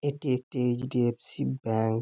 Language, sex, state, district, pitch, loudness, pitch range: Bengali, male, West Bengal, Jhargram, 125 Hz, -29 LUFS, 120-130 Hz